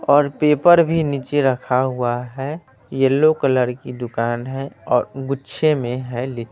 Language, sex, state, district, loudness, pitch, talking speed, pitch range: Hindi, male, Bihar, Muzaffarpur, -19 LUFS, 135 Hz, 155 wpm, 125-145 Hz